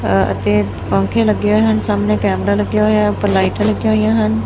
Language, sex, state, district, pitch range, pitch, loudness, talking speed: Punjabi, female, Punjab, Fazilka, 100-105 Hz, 105 Hz, -15 LUFS, 190 wpm